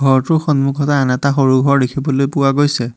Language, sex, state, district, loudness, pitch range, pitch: Assamese, male, Assam, Hailakandi, -14 LUFS, 135-145 Hz, 140 Hz